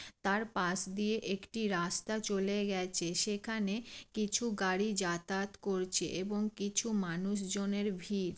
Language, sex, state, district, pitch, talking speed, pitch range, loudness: Bengali, female, West Bengal, Jalpaiguri, 200 Hz, 120 wpm, 185-210 Hz, -35 LUFS